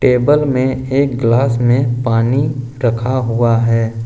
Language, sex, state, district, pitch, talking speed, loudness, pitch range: Hindi, male, Jharkhand, Ranchi, 125 Hz, 135 wpm, -15 LUFS, 115-130 Hz